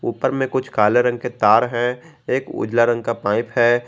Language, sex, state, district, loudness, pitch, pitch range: Hindi, male, Jharkhand, Garhwa, -19 LUFS, 120 Hz, 115-130 Hz